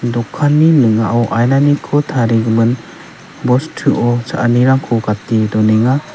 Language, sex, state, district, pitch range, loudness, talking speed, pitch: Garo, male, Meghalaya, West Garo Hills, 115-135 Hz, -13 LUFS, 80 wpm, 120 Hz